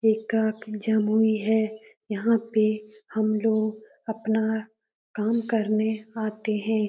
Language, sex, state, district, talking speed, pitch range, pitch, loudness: Hindi, female, Bihar, Jamui, 95 wpm, 215-220 Hz, 220 Hz, -26 LUFS